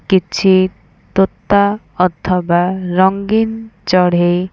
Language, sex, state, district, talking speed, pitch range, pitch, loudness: Odia, female, Odisha, Khordha, 65 wpm, 180-200 Hz, 185 Hz, -14 LUFS